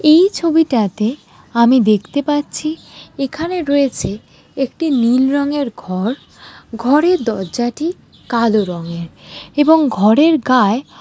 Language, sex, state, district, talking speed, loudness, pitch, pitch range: Bengali, female, West Bengal, Jalpaiguri, 80 wpm, -16 LUFS, 265 Hz, 225-305 Hz